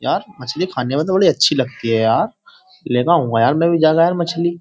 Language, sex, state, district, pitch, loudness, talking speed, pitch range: Hindi, male, Uttar Pradesh, Jyotiba Phule Nagar, 165 Hz, -16 LUFS, 220 wpm, 125-175 Hz